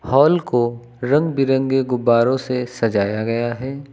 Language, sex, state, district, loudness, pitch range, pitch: Hindi, male, Uttar Pradesh, Lucknow, -19 LUFS, 120-135 Hz, 125 Hz